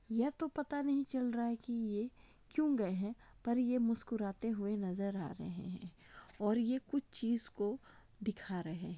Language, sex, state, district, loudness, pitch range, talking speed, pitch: Hindi, female, Jharkhand, Jamtara, -38 LUFS, 200-250 Hz, 185 wpm, 230 Hz